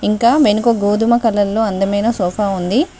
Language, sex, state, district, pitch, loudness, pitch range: Telugu, female, Telangana, Mahabubabad, 210 Hz, -15 LUFS, 200-235 Hz